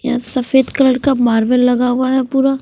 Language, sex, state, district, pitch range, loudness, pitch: Hindi, female, Punjab, Fazilka, 245-265 Hz, -14 LUFS, 255 Hz